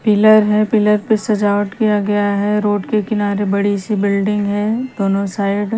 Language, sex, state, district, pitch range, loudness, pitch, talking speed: Hindi, female, Haryana, Charkhi Dadri, 205-215 Hz, -16 LUFS, 205 Hz, 175 wpm